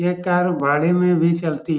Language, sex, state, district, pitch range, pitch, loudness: Hindi, male, Bihar, Saran, 160-180 Hz, 170 Hz, -19 LUFS